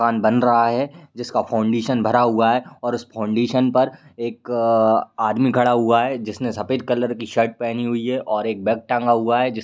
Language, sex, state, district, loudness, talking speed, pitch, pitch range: Hindi, male, Uttar Pradesh, Ghazipur, -20 LUFS, 220 wpm, 120 Hz, 115-125 Hz